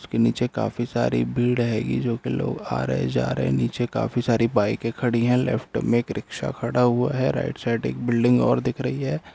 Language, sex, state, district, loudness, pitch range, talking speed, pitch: Hindi, male, Bihar, Jamui, -23 LUFS, 95-120 Hz, 225 wpm, 115 Hz